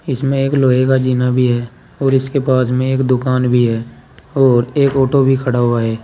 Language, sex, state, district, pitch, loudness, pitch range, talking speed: Hindi, male, Uttar Pradesh, Saharanpur, 130 Hz, -15 LUFS, 125-135 Hz, 220 wpm